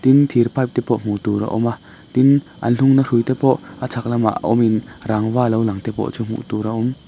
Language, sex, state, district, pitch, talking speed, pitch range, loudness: Mizo, male, Mizoram, Aizawl, 120 Hz, 245 wpm, 110-130 Hz, -18 LUFS